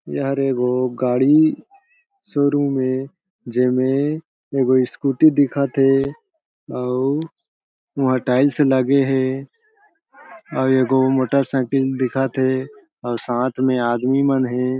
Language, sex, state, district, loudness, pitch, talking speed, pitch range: Chhattisgarhi, male, Chhattisgarh, Jashpur, -19 LUFS, 135 Hz, 110 wpm, 130-145 Hz